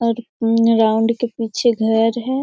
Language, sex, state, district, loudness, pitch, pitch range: Hindi, female, Bihar, Jamui, -17 LUFS, 230 Hz, 225-235 Hz